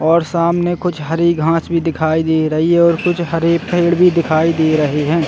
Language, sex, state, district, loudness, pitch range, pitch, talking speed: Hindi, male, Chhattisgarh, Bilaspur, -15 LUFS, 160-170 Hz, 165 Hz, 215 wpm